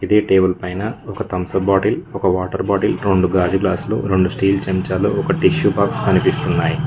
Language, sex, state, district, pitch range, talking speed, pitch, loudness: Telugu, male, Telangana, Mahabubabad, 95-105 Hz, 165 wpm, 95 Hz, -17 LUFS